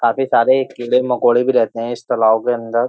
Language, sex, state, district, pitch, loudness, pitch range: Hindi, male, Uttar Pradesh, Jyotiba Phule Nagar, 120 Hz, -16 LUFS, 115-125 Hz